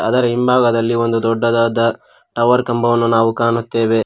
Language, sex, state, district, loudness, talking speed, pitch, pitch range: Kannada, male, Karnataka, Koppal, -15 LUFS, 120 wpm, 115 Hz, 115-120 Hz